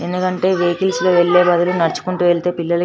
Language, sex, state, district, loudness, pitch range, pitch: Telugu, female, Telangana, Nalgonda, -16 LUFS, 175-185 Hz, 175 Hz